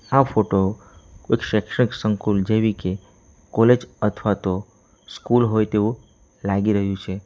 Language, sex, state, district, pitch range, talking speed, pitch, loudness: Gujarati, male, Gujarat, Valsad, 95-110 Hz, 130 wpm, 105 Hz, -21 LUFS